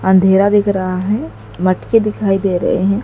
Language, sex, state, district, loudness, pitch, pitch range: Hindi, female, Madhya Pradesh, Dhar, -15 LUFS, 195 Hz, 185-205 Hz